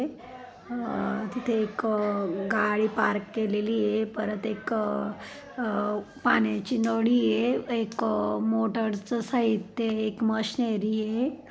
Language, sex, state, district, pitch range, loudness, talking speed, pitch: Marathi, female, Maharashtra, Dhule, 210-240 Hz, -27 LUFS, 120 wpm, 220 Hz